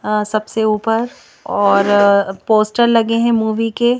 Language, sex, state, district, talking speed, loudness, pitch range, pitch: Hindi, female, Madhya Pradesh, Bhopal, 150 wpm, -15 LUFS, 210-230 Hz, 220 Hz